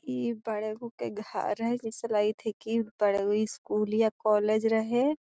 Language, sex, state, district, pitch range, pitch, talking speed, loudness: Magahi, female, Bihar, Gaya, 210-230 Hz, 220 Hz, 185 wpm, -29 LUFS